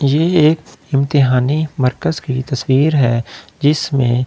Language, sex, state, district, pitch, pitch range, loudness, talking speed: Hindi, male, Delhi, New Delhi, 135 Hz, 125-150 Hz, -15 LUFS, 140 wpm